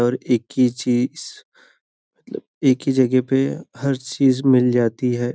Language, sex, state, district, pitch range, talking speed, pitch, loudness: Hindi, male, Maharashtra, Nagpur, 125-135 Hz, 155 wpm, 130 Hz, -19 LUFS